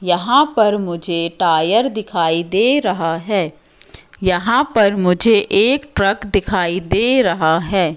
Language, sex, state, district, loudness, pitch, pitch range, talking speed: Hindi, female, Madhya Pradesh, Katni, -16 LUFS, 190 Hz, 170-215 Hz, 130 wpm